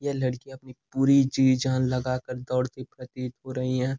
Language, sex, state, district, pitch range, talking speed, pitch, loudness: Hindi, male, Uttar Pradesh, Gorakhpur, 125-130 Hz, 195 wpm, 130 Hz, -26 LUFS